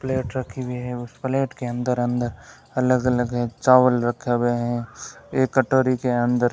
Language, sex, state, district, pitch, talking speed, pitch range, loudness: Hindi, male, Rajasthan, Bikaner, 125 Hz, 185 wpm, 120-130 Hz, -22 LUFS